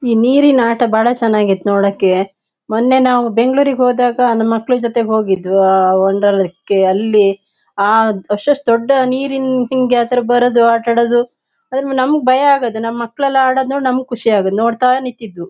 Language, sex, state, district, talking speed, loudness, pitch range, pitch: Kannada, female, Karnataka, Shimoga, 160 wpm, -13 LUFS, 205-255 Hz, 235 Hz